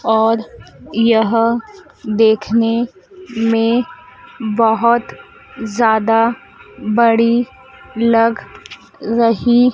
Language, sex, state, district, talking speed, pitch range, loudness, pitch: Hindi, female, Madhya Pradesh, Dhar, 55 wpm, 225-240 Hz, -15 LUFS, 230 Hz